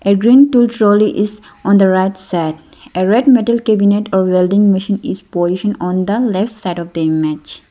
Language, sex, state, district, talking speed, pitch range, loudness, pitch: English, female, Arunachal Pradesh, Lower Dibang Valley, 195 wpm, 180-215 Hz, -13 LUFS, 200 Hz